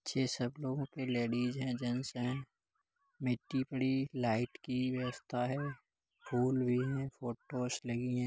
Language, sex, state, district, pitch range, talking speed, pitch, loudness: Hindi, male, Uttar Pradesh, Muzaffarnagar, 125-135 Hz, 150 wpm, 125 Hz, -37 LUFS